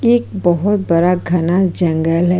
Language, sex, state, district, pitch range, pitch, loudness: Hindi, female, Chhattisgarh, Kabirdham, 170-190 Hz, 180 Hz, -15 LUFS